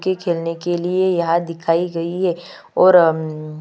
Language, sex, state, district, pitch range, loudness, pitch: Hindi, female, Chhattisgarh, Kabirdham, 165-180 Hz, -18 LUFS, 170 Hz